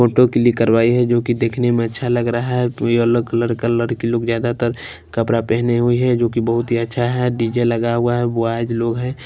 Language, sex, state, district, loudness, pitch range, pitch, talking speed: Hindi, male, Punjab, Kapurthala, -18 LUFS, 115-120 Hz, 120 Hz, 220 wpm